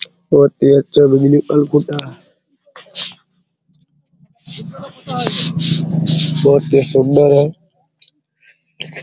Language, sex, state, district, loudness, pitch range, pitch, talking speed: Hindi, male, Bihar, Araria, -14 LUFS, 145-170 Hz, 155 Hz, 55 wpm